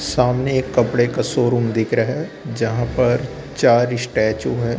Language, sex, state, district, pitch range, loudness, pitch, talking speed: Hindi, male, Chhattisgarh, Raipur, 120-125 Hz, -19 LUFS, 120 Hz, 160 wpm